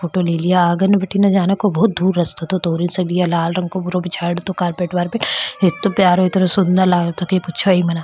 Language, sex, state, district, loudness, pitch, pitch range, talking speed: Marwari, female, Rajasthan, Churu, -16 LUFS, 180 Hz, 175-190 Hz, 135 wpm